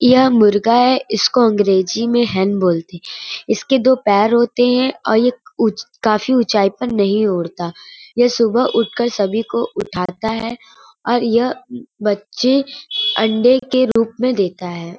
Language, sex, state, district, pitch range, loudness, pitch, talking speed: Hindi, female, Uttar Pradesh, Varanasi, 205-250 Hz, -16 LUFS, 230 Hz, 150 wpm